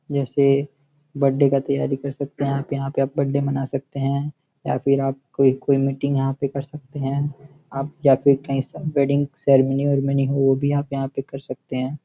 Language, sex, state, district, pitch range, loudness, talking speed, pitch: Hindi, male, Uttar Pradesh, Gorakhpur, 135-140 Hz, -21 LUFS, 215 wpm, 140 Hz